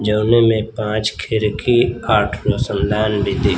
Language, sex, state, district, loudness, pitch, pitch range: Hindi, male, Bihar, Kaimur, -17 LUFS, 110 Hz, 105-115 Hz